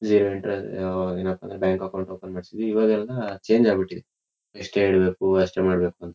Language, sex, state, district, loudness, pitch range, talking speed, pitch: Kannada, male, Karnataka, Shimoga, -23 LUFS, 95-100 Hz, 175 wpm, 95 Hz